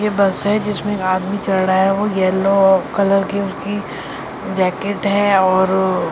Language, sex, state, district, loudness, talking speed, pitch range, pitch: Hindi, female, Delhi, New Delhi, -17 LUFS, 165 wpm, 190-200 Hz, 195 Hz